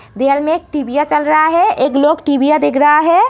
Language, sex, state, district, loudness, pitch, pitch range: Hindi, female, Uttar Pradesh, Etah, -13 LUFS, 295 Hz, 285-310 Hz